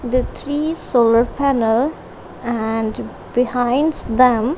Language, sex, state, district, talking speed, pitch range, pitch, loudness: English, female, Punjab, Kapurthala, 90 wpm, 230-275 Hz, 245 Hz, -18 LUFS